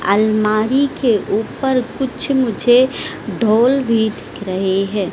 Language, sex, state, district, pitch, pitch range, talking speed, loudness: Hindi, female, Madhya Pradesh, Dhar, 225 Hz, 210-260 Hz, 115 wpm, -16 LUFS